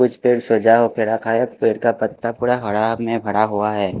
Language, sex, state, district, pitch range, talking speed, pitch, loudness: Hindi, male, Maharashtra, Mumbai Suburban, 110-115 Hz, 240 wpm, 115 Hz, -18 LUFS